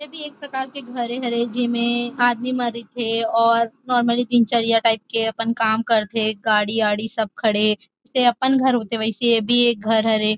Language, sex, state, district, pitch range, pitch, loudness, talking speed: Chhattisgarhi, female, Chhattisgarh, Rajnandgaon, 225-245 Hz, 235 Hz, -19 LUFS, 195 wpm